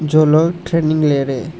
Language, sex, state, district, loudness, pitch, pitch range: Hindi, male, Assam, Hailakandi, -15 LUFS, 155 Hz, 150-165 Hz